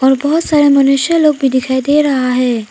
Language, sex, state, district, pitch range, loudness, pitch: Hindi, female, Arunachal Pradesh, Papum Pare, 260-295 Hz, -12 LUFS, 275 Hz